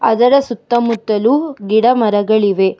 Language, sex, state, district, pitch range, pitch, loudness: Kannada, female, Karnataka, Bangalore, 210-245 Hz, 225 Hz, -14 LUFS